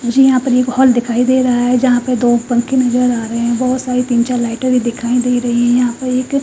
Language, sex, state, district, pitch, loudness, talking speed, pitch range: Hindi, female, Bihar, Katihar, 250 Hz, -14 LUFS, 280 wpm, 240-255 Hz